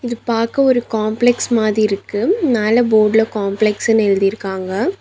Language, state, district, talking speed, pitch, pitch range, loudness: Tamil, Tamil Nadu, Nilgiris, 120 wpm, 220 Hz, 210-240 Hz, -16 LUFS